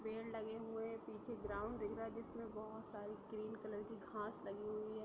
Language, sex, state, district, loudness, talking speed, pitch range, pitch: Hindi, female, Bihar, Sitamarhi, -48 LUFS, 225 wpm, 210-225 Hz, 220 Hz